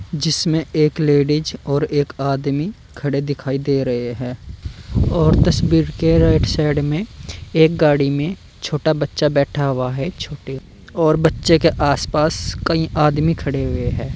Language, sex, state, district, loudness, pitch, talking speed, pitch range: Hindi, male, Uttar Pradesh, Saharanpur, -18 LUFS, 145 Hz, 150 wpm, 135-160 Hz